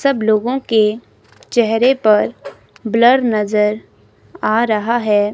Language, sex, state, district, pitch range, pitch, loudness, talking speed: Hindi, female, Himachal Pradesh, Shimla, 215-240 Hz, 220 Hz, -15 LUFS, 110 wpm